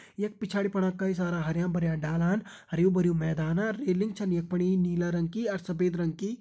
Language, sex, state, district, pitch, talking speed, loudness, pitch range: Hindi, male, Uttarakhand, Uttarkashi, 180 Hz, 215 wpm, -29 LUFS, 170-200 Hz